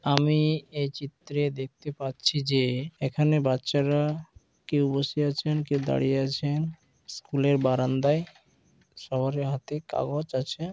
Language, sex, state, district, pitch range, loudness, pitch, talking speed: Bengali, male, West Bengal, Malda, 135-150 Hz, -27 LUFS, 145 Hz, 115 wpm